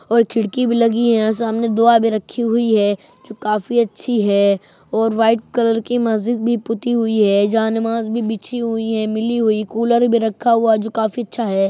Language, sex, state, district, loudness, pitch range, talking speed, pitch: Hindi, female, Uttar Pradesh, Muzaffarnagar, -17 LUFS, 220-235 Hz, 215 wpm, 225 Hz